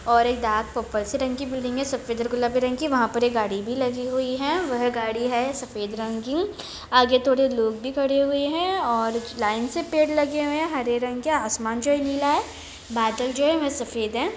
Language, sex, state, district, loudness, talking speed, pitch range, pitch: Hindi, female, Jharkhand, Jamtara, -24 LUFS, 240 wpm, 230-280 Hz, 250 Hz